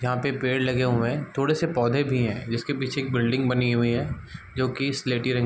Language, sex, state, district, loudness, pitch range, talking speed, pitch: Hindi, male, Bihar, Sitamarhi, -25 LUFS, 120-135 Hz, 255 wpm, 130 Hz